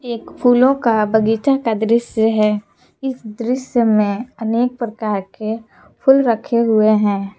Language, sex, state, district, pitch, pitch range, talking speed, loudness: Hindi, female, Jharkhand, Palamu, 225 Hz, 215-245 Hz, 140 wpm, -17 LUFS